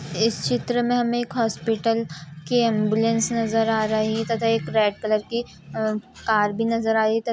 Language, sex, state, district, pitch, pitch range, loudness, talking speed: Hindi, female, Bihar, Purnia, 225 Hz, 215-230 Hz, -23 LUFS, 215 wpm